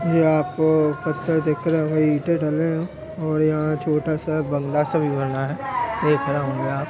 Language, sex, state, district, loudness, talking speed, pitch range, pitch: Hindi, male, Uttar Pradesh, Budaun, -22 LUFS, 190 wpm, 150-160 Hz, 155 Hz